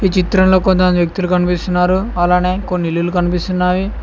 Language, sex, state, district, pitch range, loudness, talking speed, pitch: Telugu, male, Telangana, Mahabubabad, 180-185 Hz, -15 LUFS, 120 wpm, 180 Hz